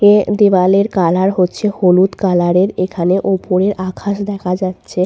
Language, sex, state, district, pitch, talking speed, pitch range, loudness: Bengali, female, West Bengal, Purulia, 190 Hz, 130 wpm, 180-200 Hz, -14 LUFS